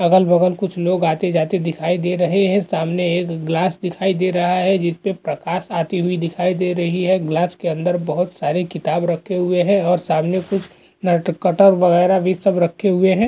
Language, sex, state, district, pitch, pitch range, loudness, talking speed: Hindi, male, Uttar Pradesh, Hamirpur, 180 Hz, 175-185 Hz, -18 LUFS, 200 wpm